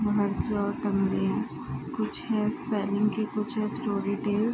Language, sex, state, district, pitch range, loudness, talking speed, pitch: Hindi, female, Bihar, Araria, 205-215 Hz, -29 LUFS, 145 wpm, 210 Hz